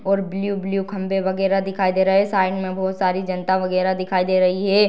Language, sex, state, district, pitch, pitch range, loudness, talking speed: Hindi, female, Bihar, Darbhanga, 190 Hz, 185-195 Hz, -20 LUFS, 245 wpm